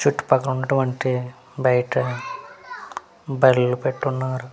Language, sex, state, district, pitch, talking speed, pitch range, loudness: Telugu, male, Andhra Pradesh, Manyam, 130 Hz, 80 wpm, 125-145 Hz, -21 LUFS